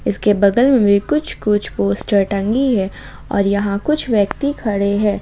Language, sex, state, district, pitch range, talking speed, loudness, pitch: Hindi, female, Jharkhand, Ranchi, 200-245 Hz, 160 wpm, -16 LUFS, 205 Hz